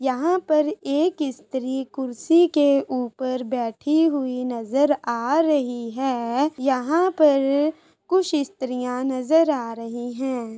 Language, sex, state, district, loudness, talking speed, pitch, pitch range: Hindi, female, Uttar Pradesh, Etah, -22 LUFS, 120 wpm, 270 Hz, 250-305 Hz